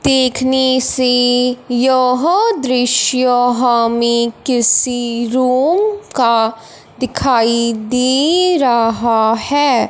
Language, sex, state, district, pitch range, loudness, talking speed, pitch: Hindi, female, Punjab, Fazilka, 235-260 Hz, -14 LUFS, 75 wpm, 250 Hz